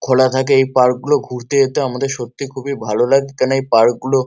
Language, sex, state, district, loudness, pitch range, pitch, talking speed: Bengali, male, West Bengal, Kolkata, -16 LUFS, 125-135 Hz, 130 Hz, 195 wpm